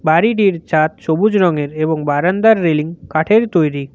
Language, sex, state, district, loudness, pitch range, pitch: Bengali, male, West Bengal, Cooch Behar, -15 LUFS, 155-195 Hz, 160 Hz